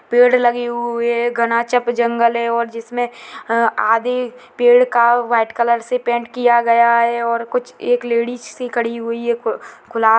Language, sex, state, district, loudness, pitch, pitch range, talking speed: Hindi, female, Chhattisgarh, Sarguja, -17 LUFS, 235 Hz, 235-245 Hz, 165 wpm